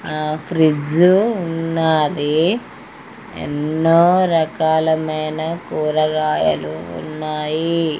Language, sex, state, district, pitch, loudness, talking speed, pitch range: Telugu, female, Andhra Pradesh, Guntur, 155 Hz, -18 LUFS, 50 wpm, 155-165 Hz